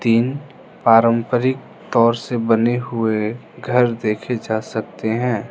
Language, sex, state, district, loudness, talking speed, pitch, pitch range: Hindi, male, Arunachal Pradesh, Lower Dibang Valley, -19 LUFS, 120 wpm, 115 Hz, 115-125 Hz